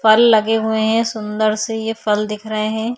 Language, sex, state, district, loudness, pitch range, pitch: Hindi, female, Uttar Pradesh, Hamirpur, -17 LUFS, 215-225 Hz, 220 Hz